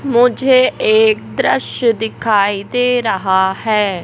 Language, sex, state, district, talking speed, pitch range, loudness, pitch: Hindi, male, Madhya Pradesh, Katni, 105 wpm, 200-255 Hz, -14 LUFS, 230 Hz